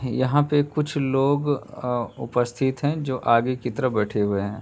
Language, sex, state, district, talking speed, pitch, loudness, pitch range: Hindi, male, Uttar Pradesh, Hamirpur, 180 wpm, 130 Hz, -23 LUFS, 120-145 Hz